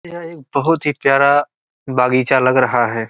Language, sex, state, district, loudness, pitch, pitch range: Hindi, male, Bihar, Gopalganj, -15 LUFS, 135 Hz, 130-150 Hz